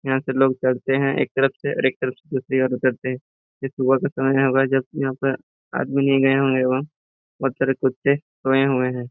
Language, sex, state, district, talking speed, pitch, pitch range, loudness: Hindi, male, Jharkhand, Jamtara, 235 wpm, 135 Hz, 130-135 Hz, -21 LUFS